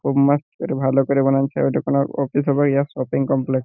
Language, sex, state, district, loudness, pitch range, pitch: Bengali, male, West Bengal, Purulia, -19 LUFS, 135-140 Hz, 140 Hz